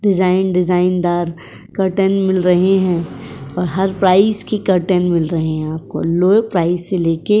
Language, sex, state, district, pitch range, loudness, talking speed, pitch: Hindi, female, Uttar Pradesh, Etah, 170-190 Hz, -16 LUFS, 160 wpm, 180 Hz